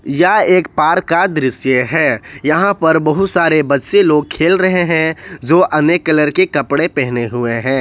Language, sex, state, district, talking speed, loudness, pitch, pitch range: Hindi, male, Jharkhand, Ranchi, 175 wpm, -13 LUFS, 160 Hz, 140-180 Hz